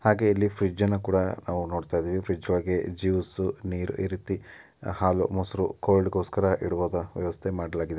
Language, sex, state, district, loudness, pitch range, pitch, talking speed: Kannada, male, Karnataka, Dakshina Kannada, -27 LUFS, 90-100 Hz, 95 Hz, 140 wpm